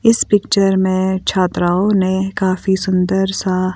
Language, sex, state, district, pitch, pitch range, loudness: Hindi, female, Himachal Pradesh, Shimla, 190 Hz, 185-195 Hz, -16 LUFS